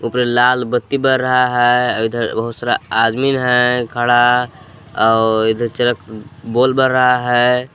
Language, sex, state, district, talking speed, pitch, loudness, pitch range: Hindi, male, Jharkhand, Palamu, 140 wpm, 125 Hz, -15 LUFS, 115-125 Hz